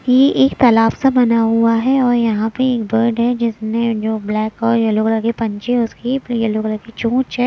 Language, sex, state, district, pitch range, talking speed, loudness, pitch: Hindi, female, Chhattisgarh, Raipur, 225-245 Hz, 235 wpm, -16 LUFS, 230 Hz